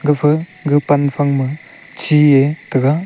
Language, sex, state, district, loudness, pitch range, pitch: Wancho, male, Arunachal Pradesh, Longding, -15 LUFS, 140-150 Hz, 145 Hz